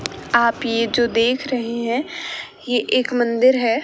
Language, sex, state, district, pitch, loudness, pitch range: Hindi, female, Rajasthan, Bikaner, 240 Hz, -19 LUFS, 235-255 Hz